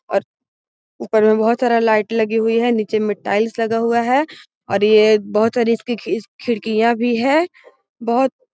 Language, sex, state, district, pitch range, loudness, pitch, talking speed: Magahi, female, Bihar, Gaya, 215-240 Hz, -17 LUFS, 230 Hz, 190 wpm